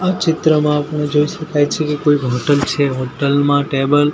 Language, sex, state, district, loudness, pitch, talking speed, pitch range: Gujarati, male, Gujarat, Gandhinagar, -16 LUFS, 145 Hz, 205 wpm, 140-150 Hz